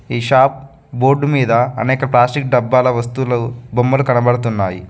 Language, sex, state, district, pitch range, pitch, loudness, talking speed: Telugu, male, Telangana, Mahabubabad, 120-135 Hz, 125 Hz, -15 LUFS, 120 wpm